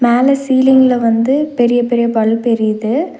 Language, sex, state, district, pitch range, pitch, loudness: Tamil, female, Tamil Nadu, Nilgiris, 230-265 Hz, 240 Hz, -13 LUFS